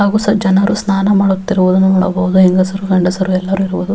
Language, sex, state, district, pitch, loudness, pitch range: Kannada, female, Karnataka, Raichur, 190 Hz, -13 LUFS, 185-195 Hz